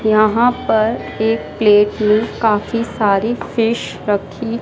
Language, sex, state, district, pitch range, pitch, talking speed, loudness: Hindi, female, Madhya Pradesh, Dhar, 210-230 Hz, 220 Hz, 115 wpm, -16 LUFS